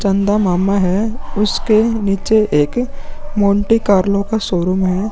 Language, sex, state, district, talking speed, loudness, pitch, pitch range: Hindi, male, Bihar, Vaishali, 130 wpm, -15 LUFS, 205 Hz, 195-220 Hz